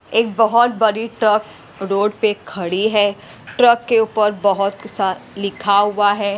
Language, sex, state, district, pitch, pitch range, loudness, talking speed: Hindi, female, Punjab, Pathankot, 210 Hz, 200-220 Hz, -17 LUFS, 150 wpm